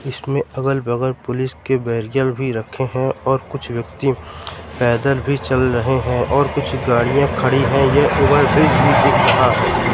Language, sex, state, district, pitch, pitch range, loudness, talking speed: Hindi, male, Madhya Pradesh, Katni, 130 Hz, 120-135 Hz, -17 LUFS, 175 wpm